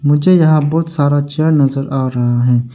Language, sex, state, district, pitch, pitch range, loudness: Hindi, male, Arunachal Pradesh, Longding, 145 Hz, 130-155 Hz, -13 LUFS